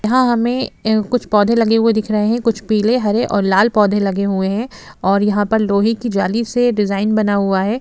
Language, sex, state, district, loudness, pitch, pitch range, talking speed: Hindi, female, Jharkhand, Sahebganj, -16 LUFS, 215 Hz, 205-230 Hz, 220 wpm